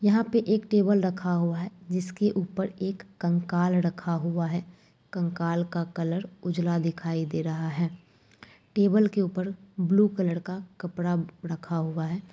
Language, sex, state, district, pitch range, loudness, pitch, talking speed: Angika, female, Bihar, Madhepura, 170-190 Hz, -28 LUFS, 175 Hz, 155 wpm